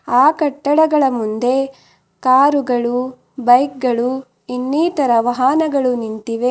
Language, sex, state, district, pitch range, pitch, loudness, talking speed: Kannada, female, Karnataka, Bidar, 240-280 Hz, 255 Hz, -16 LUFS, 90 wpm